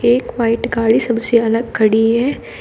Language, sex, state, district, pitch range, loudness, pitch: Hindi, female, Uttar Pradesh, Shamli, 225-235 Hz, -15 LUFS, 230 Hz